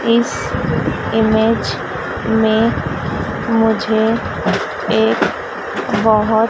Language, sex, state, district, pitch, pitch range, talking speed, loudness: Hindi, female, Madhya Pradesh, Dhar, 220 Hz, 220-225 Hz, 55 wpm, -16 LUFS